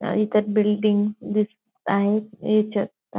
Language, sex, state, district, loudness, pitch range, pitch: Marathi, female, Maharashtra, Dhule, -23 LUFS, 210-215 Hz, 210 Hz